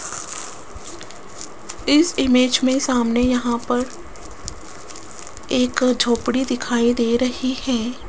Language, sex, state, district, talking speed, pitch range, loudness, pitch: Hindi, female, Rajasthan, Jaipur, 90 wpm, 240-255 Hz, -19 LUFS, 250 Hz